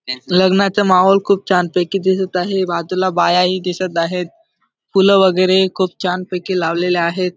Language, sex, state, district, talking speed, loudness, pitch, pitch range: Marathi, male, Maharashtra, Dhule, 155 wpm, -15 LUFS, 185 Hz, 180-190 Hz